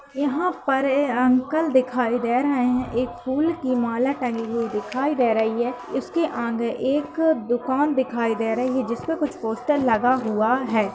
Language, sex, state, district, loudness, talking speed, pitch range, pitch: Hindi, female, Uttar Pradesh, Hamirpur, -22 LUFS, 175 wpm, 235-280 Hz, 255 Hz